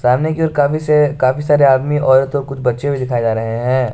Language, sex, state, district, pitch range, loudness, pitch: Hindi, male, Jharkhand, Garhwa, 125-145 Hz, -15 LUFS, 135 Hz